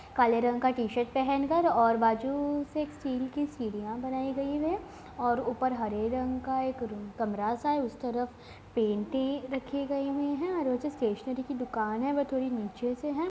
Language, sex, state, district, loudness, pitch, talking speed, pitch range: Hindi, female, Bihar, Gopalganj, -31 LUFS, 255 Hz, 200 wpm, 235-280 Hz